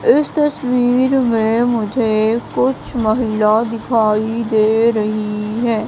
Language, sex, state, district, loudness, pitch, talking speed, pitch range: Hindi, female, Madhya Pradesh, Katni, -16 LUFS, 225 Hz, 100 wpm, 215-245 Hz